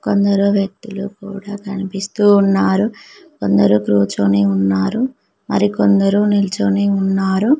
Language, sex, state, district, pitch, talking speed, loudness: Telugu, female, Telangana, Mahabubabad, 195 Hz, 95 wpm, -16 LUFS